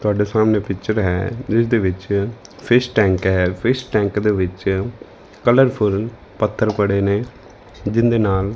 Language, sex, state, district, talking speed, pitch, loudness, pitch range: Punjabi, male, Punjab, Fazilka, 135 wpm, 105 Hz, -18 LUFS, 95-115 Hz